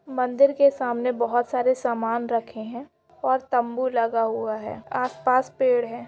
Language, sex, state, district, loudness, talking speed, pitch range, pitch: Hindi, female, Jharkhand, Jamtara, -23 LUFS, 160 wpm, 235-255 Hz, 245 Hz